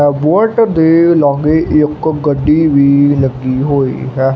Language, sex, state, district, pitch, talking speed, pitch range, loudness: Punjabi, male, Punjab, Kapurthala, 145 Hz, 110 wpm, 140-160 Hz, -11 LUFS